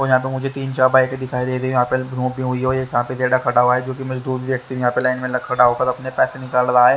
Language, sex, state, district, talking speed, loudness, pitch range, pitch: Hindi, male, Haryana, Charkhi Dadri, 190 wpm, -19 LUFS, 125-130 Hz, 130 Hz